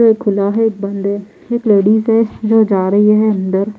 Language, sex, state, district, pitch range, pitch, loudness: Hindi, female, Bihar, Patna, 200-225 Hz, 210 Hz, -13 LUFS